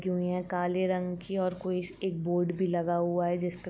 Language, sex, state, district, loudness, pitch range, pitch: Hindi, female, Uttar Pradesh, Varanasi, -31 LUFS, 175-185 Hz, 180 Hz